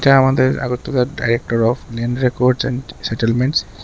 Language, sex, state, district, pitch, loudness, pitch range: Bengali, male, Tripura, West Tripura, 125 Hz, -17 LUFS, 115-130 Hz